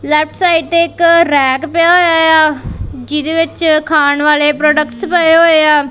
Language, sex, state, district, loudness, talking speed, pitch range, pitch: Punjabi, female, Punjab, Kapurthala, -10 LUFS, 160 wpm, 300-335 Hz, 315 Hz